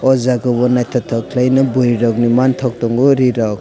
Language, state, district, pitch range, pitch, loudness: Kokborok, Tripura, West Tripura, 120-130 Hz, 125 Hz, -14 LUFS